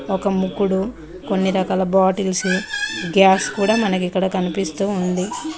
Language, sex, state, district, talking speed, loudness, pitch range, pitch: Telugu, female, Telangana, Mahabubabad, 120 wpm, -19 LUFS, 185-200 Hz, 190 Hz